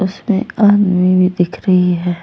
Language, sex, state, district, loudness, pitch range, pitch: Hindi, female, Jharkhand, Deoghar, -13 LUFS, 180-200 Hz, 185 Hz